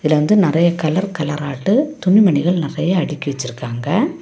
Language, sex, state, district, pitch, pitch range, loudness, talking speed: Tamil, female, Tamil Nadu, Kanyakumari, 165 Hz, 150-195 Hz, -17 LUFS, 140 wpm